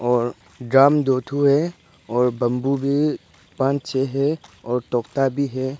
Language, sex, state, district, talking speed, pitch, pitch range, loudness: Hindi, male, Arunachal Pradesh, Papum Pare, 155 wpm, 135 Hz, 125-140 Hz, -21 LUFS